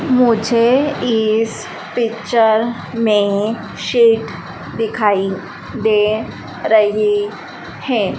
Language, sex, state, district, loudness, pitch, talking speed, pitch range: Hindi, female, Madhya Pradesh, Dhar, -16 LUFS, 220 Hz, 65 wpm, 210-235 Hz